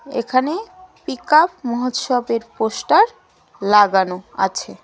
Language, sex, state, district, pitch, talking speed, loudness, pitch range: Bengali, female, West Bengal, Cooch Behar, 245 Hz, 75 wpm, -18 LUFS, 210-310 Hz